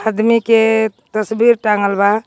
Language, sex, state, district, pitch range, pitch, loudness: Magahi, female, Jharkhand, Palamu, 210-225 Hz, 220 Hz, -14 LUFS